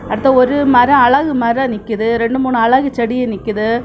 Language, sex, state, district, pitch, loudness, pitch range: Tamil, female, Tamil Nadu, Kanyakumari, 245 Hz, -13 LUFS, 230-260 Hz